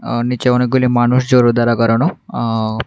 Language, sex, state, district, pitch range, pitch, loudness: Bengali, male, Tripura, West Tripura, 115-125 Hz, 120 Hz, -14 LUFS